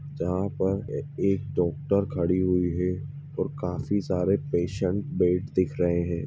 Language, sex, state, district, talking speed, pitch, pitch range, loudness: Hindi, male, Chhattisgarh, Rajnandgaon, 145 wpm, 95 Hz, 90-100 Hz, -27 LUFS